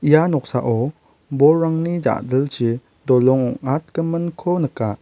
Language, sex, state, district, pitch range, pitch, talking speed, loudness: Garo, male, Meghalaya, West Garo Hills, 125-160 Hz, 135 Hz, 85 wpm, -19 LUFS